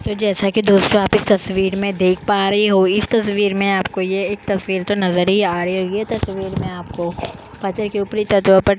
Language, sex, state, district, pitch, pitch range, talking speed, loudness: Hindi, female, Maharashtra, Chandrapur, 195 Hz, 190-205 Hz, 210 wpm, -17 LUFS